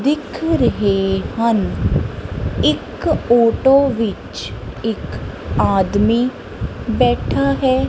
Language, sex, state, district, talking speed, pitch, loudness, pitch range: Punjabi, female, Punjab, Kapurthala, 75 wpm, 230 Hz, -18 LUFS, 210-270 Hz